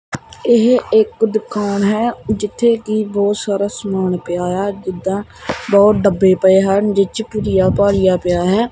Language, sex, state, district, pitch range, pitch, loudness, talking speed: Punjabi, male, Punjab, Kapurthala, 190-215 Hz, 200 Hz, -15 LUFS, 150 wpm